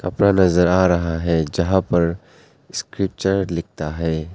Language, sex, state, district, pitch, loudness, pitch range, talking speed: Hindi, male, Arunachal Pradesh, Papum Pare, 85 Hz, -19 LUFS, 85-95 Hz, 140 wpm